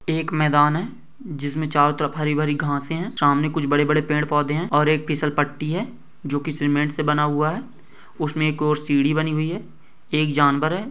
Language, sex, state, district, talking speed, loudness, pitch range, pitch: Hindi, male, West Bengal, Purulia, 210 wpm, -21 LUFS, 145-155 Hz, 150 Hz